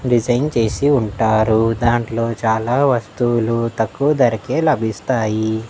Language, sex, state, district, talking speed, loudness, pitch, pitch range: Telugu, male, Andhra Pradesh, Annamaya, 95 wpm, -17 LUFS, 115 Hz, 110-125 Hz